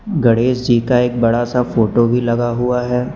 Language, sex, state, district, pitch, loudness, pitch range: Hindi, male, Uttar Pradesh, Lucknow, 120 Hz, -15 LUFS, 120-125 Hz